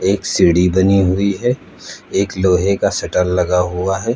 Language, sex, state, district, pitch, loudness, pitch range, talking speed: Hindi, male, Uttar Pradesh, Lucknow, 95 Hz, -16 LUFS, 90-100 Hz, 175 wpm